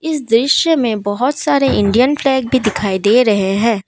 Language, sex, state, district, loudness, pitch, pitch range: Hindi, female, Assam, Kamrup Metropolitan, -14 LUFS, 245 Hz, 210-275 Hz